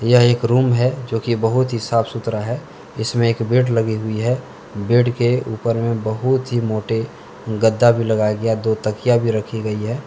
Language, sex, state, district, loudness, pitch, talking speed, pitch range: Hindi, male, Jharkhand, Deoghar, -18 LUFS, 115 Hz, 195 wpm, 110-120 Hz